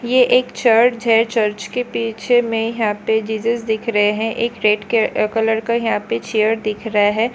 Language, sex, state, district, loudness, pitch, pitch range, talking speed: Hindi, female, West Bengal, Kolkata, -17 LUFS, 225 Hz, 215-235 Hz, 205 wpm